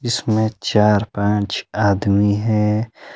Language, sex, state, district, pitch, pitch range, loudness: Hindi, male, Himachal Pradesh, Shimla, 105 Hz, 100-110 Hz, -18 LUFS